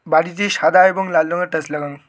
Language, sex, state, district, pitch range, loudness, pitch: Bengali, male, West Bengal, Cooch Behar, 155-185 Hz, -16 LUFS, 165 Hz